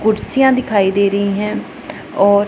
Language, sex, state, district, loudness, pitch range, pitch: Hindi, female, Punjab, Pathankot, -15 LUFS, 200-220 Hz, 205 Hz